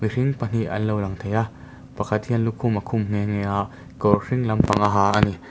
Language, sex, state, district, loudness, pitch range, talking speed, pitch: Mizo, male, Mizoram, Aizawl, -23 LUFS, 105-115 Hz, 230 wpm, 105 Hz